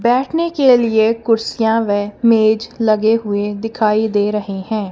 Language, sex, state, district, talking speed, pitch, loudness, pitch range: Hindi, female, Punjab, Kapurthala, 145 wpm, 220 Hz, -16 LUFS, 210-230 Hz